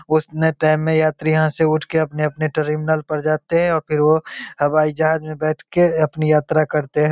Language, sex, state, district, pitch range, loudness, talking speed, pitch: Hindi, male, Bihar, Begusarai, 155-160 Hz, -18 LUFS, 210 wpm, 155 Hz